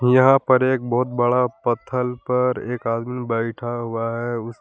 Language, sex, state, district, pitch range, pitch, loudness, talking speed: Hindi, male, Jharkhand, Palamu, 115-125 Hz, 125 Hz, -21 LUFS, 170 wpm